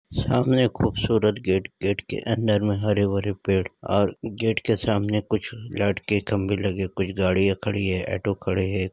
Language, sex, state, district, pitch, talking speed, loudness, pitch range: Hindi, female, Maharashtra, Nagpur, 100 Hz, 180 wpm, -24 LUFS, 95-110 Hz